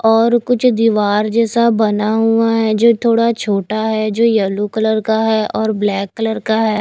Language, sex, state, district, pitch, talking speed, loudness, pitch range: Hindi, female, Haryana, Jhajjar, 220 Hz, 185 wpm, -15 LUFS, 215-230 Hz